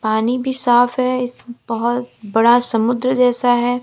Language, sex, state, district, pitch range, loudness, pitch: Hindi, female, Uttar Pradesh, Lalitpur, 235-250 Hz, -17 LUFS, 245 Hz